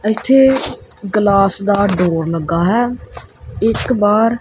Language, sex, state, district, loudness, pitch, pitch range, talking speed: Punjabi, male, Punjab, Kapurthala, -14 LUFS, 205 Hz, 195-230 Hz, 120 wpm